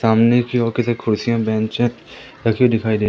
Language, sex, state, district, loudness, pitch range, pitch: Hindi, male, Madhya Pradesh, Umaria, -18 LUFS, 110-120 Hz, 115 Hz